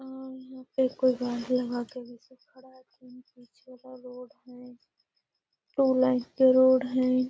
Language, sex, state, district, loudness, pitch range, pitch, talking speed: Magahi, female, Bihar, Gaya, -26 LUFS, 250-260 Hz, 255 Hz, 125 wpm